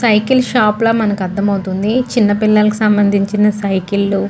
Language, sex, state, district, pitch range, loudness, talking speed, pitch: Telugu, female, Andhra Pradesh, Guntur, 200-220 Hz, -14 LUFS, 165 wpm, 210 Hz